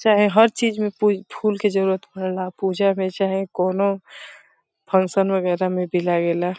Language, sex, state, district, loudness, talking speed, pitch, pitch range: Hindi, female, Uttar Pradesh, Deoria, -21 LUFS, 165 wpm, 195 Hz, 185-205 Hz